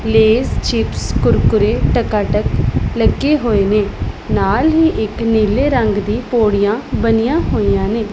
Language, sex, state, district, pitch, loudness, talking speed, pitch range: Punjabi, female, Punjab, Pathankot, 225 Hz, -15 LUFS, 125 wpm, 210-250 Hz